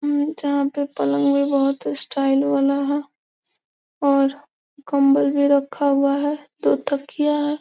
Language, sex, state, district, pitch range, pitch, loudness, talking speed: Hindi, female, Bihar, Gopalganj, 275-290 Hz, 280 Hz, -20 LUFS, 135 wpm